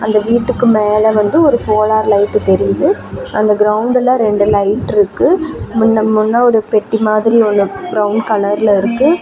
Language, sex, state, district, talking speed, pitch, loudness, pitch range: Tamil, female, Tamil Nadu, Namakkal, 145 wpm, 215 Hz, -12 LUFS, 210-230 Hz